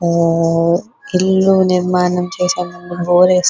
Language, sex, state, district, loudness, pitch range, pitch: Telugu, female, Telangana, Nalgonda, -15 LUFS, 175-185 Hz, 180 Hz